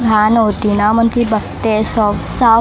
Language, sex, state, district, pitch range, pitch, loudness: Marathi, female, Maharashtra, Mumbai Suburban, 215-230 Hz, 220 Hz, -14 LUFS